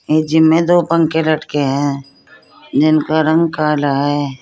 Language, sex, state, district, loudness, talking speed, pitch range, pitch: Hindi, female, Uttar Pradesh, Saharanpur, -14 LUFS, 150 wpm, 145-160 Hz, 155 Hz